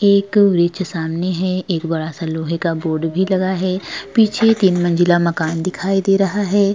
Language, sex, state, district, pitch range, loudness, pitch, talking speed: Hindi, female, Uttar Pradesh, Jalaun, 165-195 Hz, -17 LUFS, 185 Hz, 180 wpm